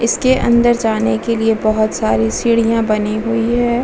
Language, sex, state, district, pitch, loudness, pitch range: Hindi, female, Bihar, Vaishali, 225 Hz, -15 LUFS, 215-235 Hz